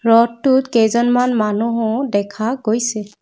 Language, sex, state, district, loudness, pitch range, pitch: Assamese, female, Assam, Kamrup Metropolitan, -17 LUFS, 215-245 Hz, 230 Hz